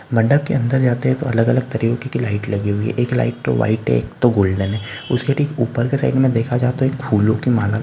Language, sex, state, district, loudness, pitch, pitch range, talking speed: Marwari, male, Rajasthan, Nagaur, -18 LUFS, 120 Hz, 110-130 Hz, 270 wpm